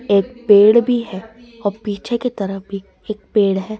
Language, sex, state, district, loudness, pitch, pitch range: Hindi, female, Rajasthan, Jaipur, -17 LUFS, 210 Hz, 200-235 Hz